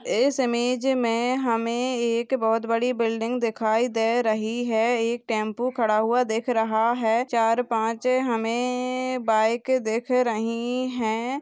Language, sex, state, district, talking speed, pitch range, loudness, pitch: Hindi, female, Bihar, Purnia, 130 wpm, 225-250 Hz, -24 LUFS, 235 Hz